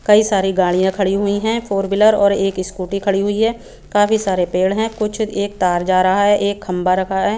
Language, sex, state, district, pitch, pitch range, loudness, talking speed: Hindi, female, Chandigarh, Chandigarh, 200 Hz, 190-210 Hz, -17 LUFS, 230 wpm